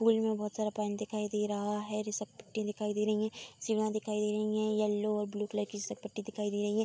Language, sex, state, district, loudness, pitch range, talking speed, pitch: Hindi, female, Uttar Pradesh, Budaun, -34 LUFS, 210-215 Hz, 245 wpm, 210 Hz